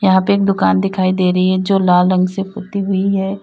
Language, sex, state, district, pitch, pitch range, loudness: Hindi, female, Uttar Pradesh, Lalitpur, 190 Hz, 185-195 Hz, -15 LUFS